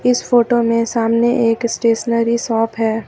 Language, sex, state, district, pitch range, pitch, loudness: Hindi, female, Uttar Pradesh, Lucknow, 230-235 Hz, 230 Hz, -16 LUFS